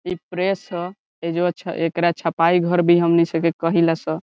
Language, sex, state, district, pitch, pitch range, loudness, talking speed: Bhojpuri, male, Bihar, Saran, 170 Hz, 165-180 Hz, -20 LUFS, 210 wpm